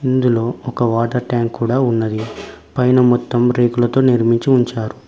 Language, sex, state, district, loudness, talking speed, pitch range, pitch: Telugu, male, Telangana, Mahabubabad, -16 LUFS, 130 wpm, 115-125 Hz, 120 Hz